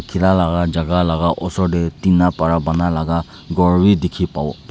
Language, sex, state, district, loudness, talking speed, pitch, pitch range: Nagamese, male, Nagaland, Dimapur, -17 LUFS, 180 wpm, 85 Hz, 85-90 Hz